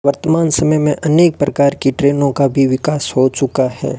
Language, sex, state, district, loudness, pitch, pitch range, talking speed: Hindi, male, Rajasthan, Bikaner, -14 LUFS, 140 Hz, 135-150 Hz, 195 wpm